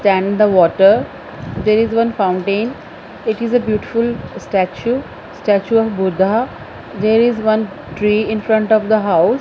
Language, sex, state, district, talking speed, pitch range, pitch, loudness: English, female, Punjab, Fazilka, 155 wpm, 195-230 Hz, 215 Hz, -16 LUFS